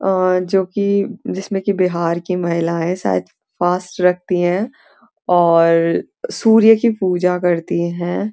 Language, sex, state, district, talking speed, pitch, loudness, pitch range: Hindi, female, Uttarakhand, Uttarkashi, 130 wpm, 180 Hz, -17 LUFS, 175-200 Hz